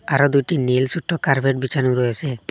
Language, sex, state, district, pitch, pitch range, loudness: Bengali, male, Assam, Hailakandi, 135 Hz, 130-145 Hz, -19 LUFS